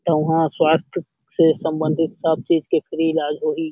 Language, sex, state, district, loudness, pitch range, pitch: Chhattisgarhi, male, Chhattisgarh, Sarguja, -19 LUFS, 155-165 Hz, 160 Hz